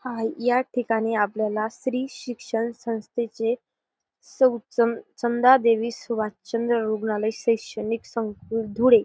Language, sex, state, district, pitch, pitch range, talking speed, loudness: Marathi, female, Maharashtra, Dhule, 230 Hz, 220-240 Hz, 120 wpm, -24 LUFS